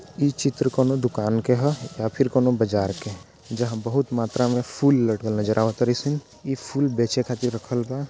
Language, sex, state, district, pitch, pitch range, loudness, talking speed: Bhojpuri, male, Bihar, Gopalganj, 125 Hz, 115-135 Hz, -23 LUFS, 200 wpm